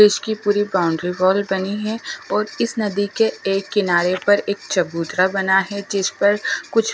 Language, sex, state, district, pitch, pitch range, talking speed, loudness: Hindi, female, Bihar, West Champaran, 200 Hz, 190-210 Hz, 175 wpm, -19 LUFS